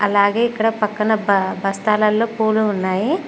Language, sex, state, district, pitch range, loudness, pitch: Telugu, female, Telangana, Mahabubabad, 200-220 Hz, -18 LUFS, 215 Hz